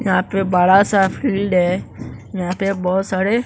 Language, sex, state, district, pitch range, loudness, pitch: Hindi, male, Bihar, West Champaran, 185-195 Hz, -17 LUFS, 190 Hz